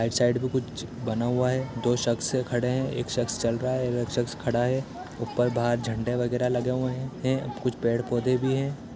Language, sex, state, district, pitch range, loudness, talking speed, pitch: Hindi, male, Bihar, East Champaran, 120-130 Hz, -27 LUFS, 220 wpm, 125 Hz